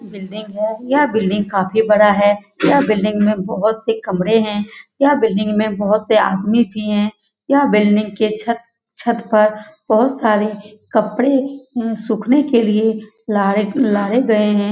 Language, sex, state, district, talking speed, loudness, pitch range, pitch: Hindi, female, Bihar, Saran, 150 wpm, -16 LUFS, 210-230 Hz, 215 Hz